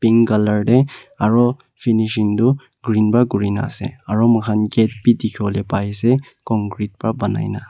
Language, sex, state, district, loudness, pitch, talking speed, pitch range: Nagamese, male, Nagaland, Kohima, -18 LUFS, 110 Hz, 155 wpm, 105-120 Hz